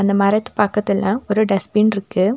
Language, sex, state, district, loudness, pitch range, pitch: Tamil, female, Tamil Nadu, Nilgiris, -18 LUFS, 200-210 Hz, 205 Hz